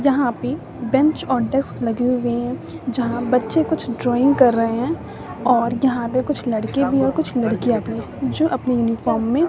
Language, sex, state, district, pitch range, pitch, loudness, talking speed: Hindi, female, Bihar, West Champaran, 235-270 Hz, 250 Hz, -20 LUFS, 185 wpm